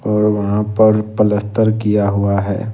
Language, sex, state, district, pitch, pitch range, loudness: Hindi, male, Jharkhand, Ranchi, 105 Hz, 100-110 Hz, -15 LUFS